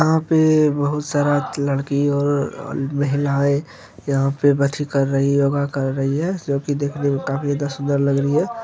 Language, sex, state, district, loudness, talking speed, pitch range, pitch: Hindi, male, Bihar, Kishanganj, -20 LUFS, 195 wpm, 140-145 Hz, 140 Hz